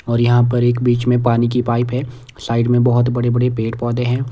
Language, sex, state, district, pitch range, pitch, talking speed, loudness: Hindi, male, Himachal Pradesh, Shimla, 120-125 Hz, 120 Hz, 250 wpm, -16 LUFS